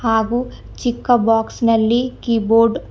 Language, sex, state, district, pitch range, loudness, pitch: Kannada, female, Karnataka, Bidar, 225-240 Hz, -17 LUFS, 230 Hz